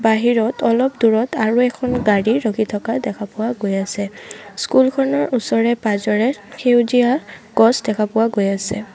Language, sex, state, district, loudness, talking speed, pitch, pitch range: Assamese, female, Assam, Sonitpur, -18 LUFS, 145 wpm, 225 Hz, 210-245 Hz